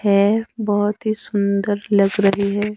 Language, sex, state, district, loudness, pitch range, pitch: Hindi, male, Himachal Pradesh, Shimla, -19 LUFS, 200-210 Hz, 205 Hz